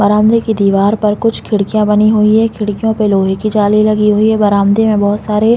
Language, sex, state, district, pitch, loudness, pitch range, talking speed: Hindi, female, Chhattisgarh, Balrampur, 210 Hz, -12 LUFS, 205-215 Hz, 225 wpm